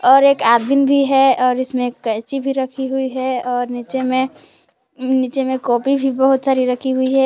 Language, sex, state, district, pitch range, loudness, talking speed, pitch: Hindi, female, Jharkhand, Palamu, 250-270 Hz, -17 LUFS, 200 wpm, 260 Hz